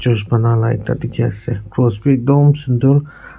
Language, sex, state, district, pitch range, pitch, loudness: Nagamese, male, Nagaland, Kohima, 115-140 Hz, 120 Hz, -15 LUFS